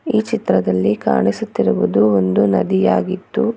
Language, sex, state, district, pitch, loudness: Kannada, female, Karnataka, Bangalore, 105 Hz, -16 LUFS